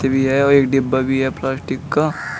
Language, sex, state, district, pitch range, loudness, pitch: Hindi, male, Uttar Pradesh, Shamli, 135-140 Hz, -17 LUFS, 135 Hz